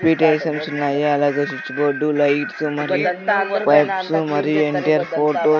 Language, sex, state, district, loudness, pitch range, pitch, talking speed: Telugu, male, Andhra Pradesh, Sri Satya Sai, -19 LUFS, 145-160 Hz, 150 Hz, 140 wpm